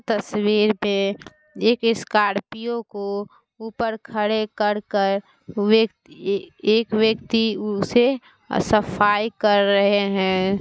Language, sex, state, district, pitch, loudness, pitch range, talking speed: Hindi, female, Bihar, Muzaffarpur, 210 Hz, -21 LUFS, 200-230 Hz, 90 wpm